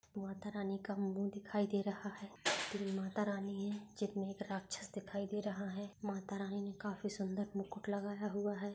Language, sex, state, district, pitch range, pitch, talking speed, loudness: Hindi, female, Bihar, Saharsa, 200-205 Hz, 200 Hz, 190 wpm, -41 LUFS